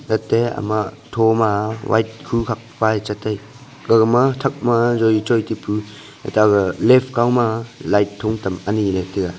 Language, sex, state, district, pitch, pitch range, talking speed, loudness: Wancho, male, Arunachal Pradesh, Longding, 110 Hz, 105-120 Hz, 145 wpm, -18 LUFS